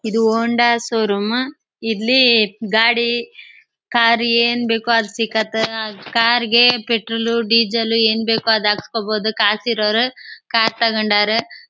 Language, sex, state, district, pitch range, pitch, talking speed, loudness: Kannada, female, Karnataka, Chamarajanagar, 220-235 Hz, 225 Hz, 120 wpm, -16 LUFS